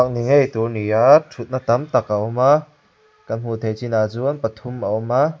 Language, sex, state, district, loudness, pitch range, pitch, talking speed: Mizo, male, Mizoram, Aizawl, -19 LUFS, 110-140 Hz, 120 Hz, 255 wpm